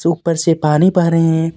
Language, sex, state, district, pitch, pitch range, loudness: Hindi, male, Jharkhand, Deoghar, 165 Hz, 160-170 Hz, -14 LUFS